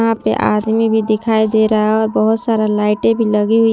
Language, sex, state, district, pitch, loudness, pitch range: Hindi, female, Jharkhand, Palamu, 220 Hz, -14 LUFS, 215-225 Hz